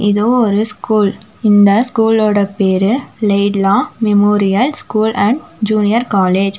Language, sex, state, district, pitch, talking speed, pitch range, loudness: Tamil, female, Tamil Nadu, Nilgiris, 210 Hz, 120 wpm, 200-225 Hz, -13 LUFS